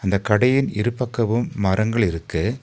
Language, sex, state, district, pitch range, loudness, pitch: Tamil, male, Tamil Nadu, Nilgiris, 100-120 Hz, -21 LUFS, 110 Hz